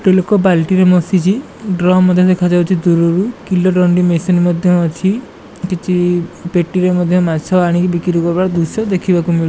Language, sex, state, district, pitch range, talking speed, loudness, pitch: Odia, male, Odisha, Malkangiri, 175-185 Hz, 160 wpm, -13 LUFS, 180 Hz